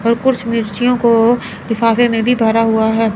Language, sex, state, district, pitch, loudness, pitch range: Hindi, female, Chandigarh, Chandigarh, 230 Hz, -14 LUFS, 225-240 Hz